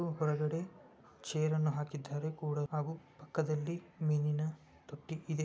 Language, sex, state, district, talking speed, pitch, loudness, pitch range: Kannada, male, Karnataka, Bellary, 110 wpm, 155 Hz, -37 LUFS, 150-160 Hz